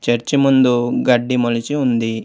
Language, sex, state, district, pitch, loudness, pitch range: Telugu, male, Telangana, Komaram Bheem, 120 Hz, -16 LUFS, 120-130 Hz